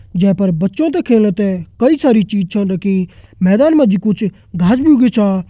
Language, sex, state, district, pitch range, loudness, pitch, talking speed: Kumaoni, male, Uttarakhand, Tehri Garhwal, 190-245 Hz, -13 LUFS, 205 Hz, 175 wpm